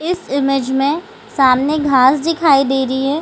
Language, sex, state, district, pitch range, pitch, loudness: Hindi, female, Bihar, Gaya, 265-305 Hz, 275 Hz, -15 LUFS